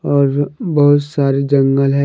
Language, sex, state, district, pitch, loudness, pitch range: Hindi, male, Jharkhand, Deoghar, 140 Hz, -14 LUFS, 140-145 Hz